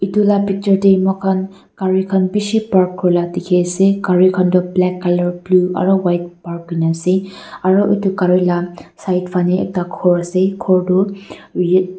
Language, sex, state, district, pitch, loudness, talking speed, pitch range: Nagamese, female, Nagaland, Dimapur, 185 Hz, -16 LUFS, 160 wpm, 180-195 Hz